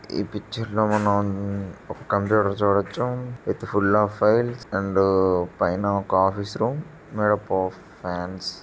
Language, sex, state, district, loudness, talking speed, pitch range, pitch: Telugu, male, Andhra Pradesh, Srikakulam, -23 LUFS, 140 wpm, 95-110 Hz, 100 Hz